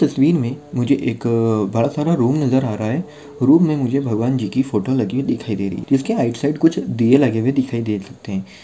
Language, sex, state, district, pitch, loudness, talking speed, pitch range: Hindi, male, Maharashtra, Sindhudurg, 130 Hz, -18 LUFS, 230 wpm, 115-145 Hz